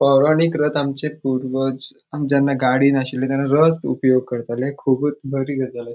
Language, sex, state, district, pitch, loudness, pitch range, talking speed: Konkani, male, Goa, North and South Goa, 135 Hz, -19 LUFS, 130-145 Hz, 150 wpm